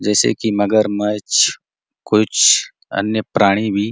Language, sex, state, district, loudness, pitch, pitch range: Hindi, male, Chhattisgarh, Bastar, -16 LUFS, 105 Hz, 105-110 Hz